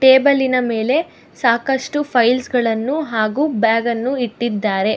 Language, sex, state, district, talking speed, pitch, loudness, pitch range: Kannada, female, Karnataka, Bangalore, 95 wpm, 245 Hz, -17 LUFS, 225-270 Hz